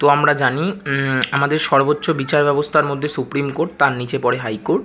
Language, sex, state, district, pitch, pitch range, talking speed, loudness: Bengali, male, West Bengal, Kolkata, 140 Hz, 135-150 Hz, 210 wpm, -18 LUFS